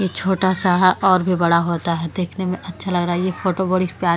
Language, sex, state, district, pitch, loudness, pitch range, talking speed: Hindi, female, Delhi, New Delhi, 185 Hz, -19 LUFS, 175-185 Hz, 275 wpm